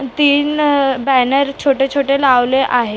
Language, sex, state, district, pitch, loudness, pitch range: Marathi, female, Maharashtra, Mumbai Suburban, 275 Hz, -14 LUFS, 260-280 Hz